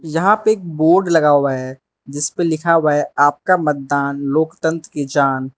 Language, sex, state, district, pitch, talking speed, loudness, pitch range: Hindi, male, Arunachal Pradesh, Lower Dibang Valley, 150 Hz, 185 wpm, -16 LUFS, 140-165 Hz